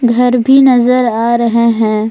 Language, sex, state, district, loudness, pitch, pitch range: Hindi, female, Jharkhand, Palamu, -10 LUFS, 235 Hz, 230-250 Hz